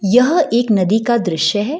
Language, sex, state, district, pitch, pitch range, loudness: Hindi, female, Bihar, Gaya, 220 Hz, 200-245 Hz, -15 LUFS